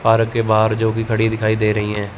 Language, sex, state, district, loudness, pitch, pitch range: Hindi, male, Chandigarh, Chandigarh, -17 LUFS, 110 Hz, 110-115 Hz